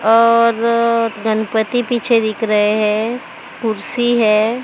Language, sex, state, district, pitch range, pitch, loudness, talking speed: Hindi, male, Maharashtra, Mumbai Suburban, 220-235 Hz, 230 Hz, -15 LUFS, 105 wpm